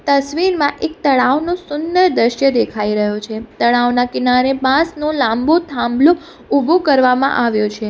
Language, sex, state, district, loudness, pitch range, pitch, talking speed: Gujarati, female, Gujarat, Valsad, -15 LUFS, 240-305 Hz, 270 Hz, 130 wpm